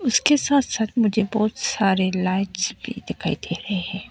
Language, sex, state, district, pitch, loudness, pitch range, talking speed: Hindi, female, Arunachal Pradesh, Papum Pare, 210 Hz, -22 LUFS, 190-245 Hz, 175 wpm